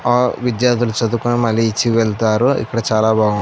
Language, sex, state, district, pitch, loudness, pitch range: Telugu, male, Andhra Pradesh, Anantapur, 115 Hz, -16 LUFS, 110-120 Hz